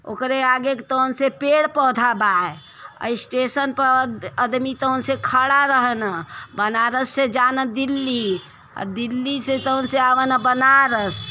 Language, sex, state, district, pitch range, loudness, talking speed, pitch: Bhojpuri, female, Uttar Pradesh, Varanasi, 235-265 Hz, -19 LUFS, 125 wpm, 255 Hz